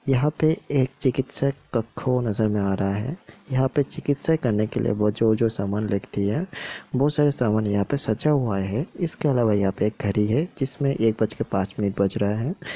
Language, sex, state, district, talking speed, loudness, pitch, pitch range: Hindi, male, Bihar, Sitamarhi, 210 wpm, -24 LUFS, 120 Hz, 105-145 Hz